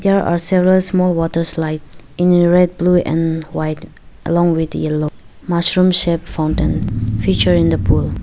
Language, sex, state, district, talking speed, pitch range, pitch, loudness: English, female, Arunachal Pradesh, Lower Dibang Valley, 155 wpm, 150-175 Hz, 165 Hz, -16 LUFS